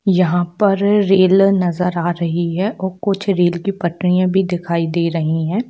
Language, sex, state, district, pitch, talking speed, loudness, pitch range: Hindi, female, Jharkhand, Jamtara, 180 Hz, 170 wpm, -16 LUFS, 175-195 Hz